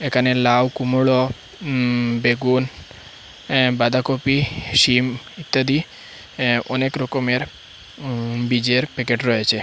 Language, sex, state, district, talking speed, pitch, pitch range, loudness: Bengali, male, Assam, Hailakandi, 100 wpm, 125 Hz, 120-130 Hz, -19 LUFS